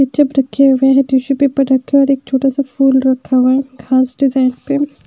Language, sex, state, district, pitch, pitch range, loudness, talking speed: Hindi, female, Bihar, West Champaran, 270 Hz, 260-275 Hz, -13 LUFS, 175 wpm